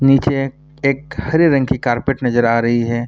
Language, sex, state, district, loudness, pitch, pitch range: Hindi, male, Bihar, Purnia, -16 LUFS, 135 Hz, 120-140 Hz